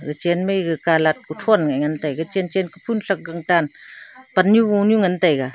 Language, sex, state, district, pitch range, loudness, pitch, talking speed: Wancho, female, Arunachal Pradesh, Longding, 155-195 Hz, -19 LUFS, 175 Hz, 205 wpm